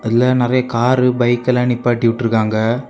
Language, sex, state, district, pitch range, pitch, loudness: Tamil, male, Tamil Nadu, Kanyakumari, 115-125 Hz, 120 Hz, -15 LUFS